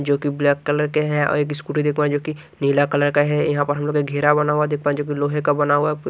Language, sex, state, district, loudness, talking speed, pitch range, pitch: Hindi, male, Odisha, Nuapada, -20 LUFS, 325 wpm, 145-150 Hz, 145 Hz